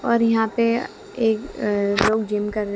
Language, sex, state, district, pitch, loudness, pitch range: Hindi, female, Haryana, Jhajjar, 220 Hz, -21 LUFS, 210-230 Hz